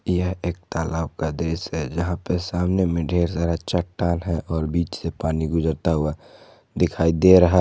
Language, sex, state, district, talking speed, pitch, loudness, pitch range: Hindi, male, Jharkhand, Garhwa, 180 wpm, 85 Hz, -23 LUFS, 80-90 Hz